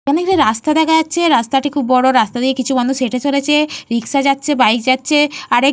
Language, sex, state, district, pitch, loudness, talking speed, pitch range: Bengali, female, West Bengal, Purulia, 275 Hz, -14 LUFS, 180 wpm, 255-300 Hz